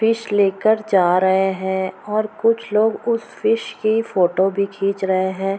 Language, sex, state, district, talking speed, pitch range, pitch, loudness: Hindi, female, Bihar, Purnia, 170 wpm, 190-225 Hz, 200 Hz, -19 LUFS